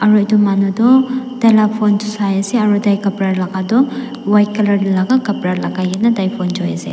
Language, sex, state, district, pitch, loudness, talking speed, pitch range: Nagamese, female, Nagaland, Dimapur, 210 Hz, -15 LUFS, 180 wpm, 195-225 Hz